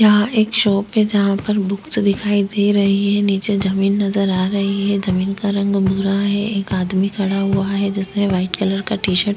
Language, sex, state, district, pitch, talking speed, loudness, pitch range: Hindi, female, Chhattisgarh, Korba, 200 Hz, 220 wpm, -18 LUFS, 195-205 Hz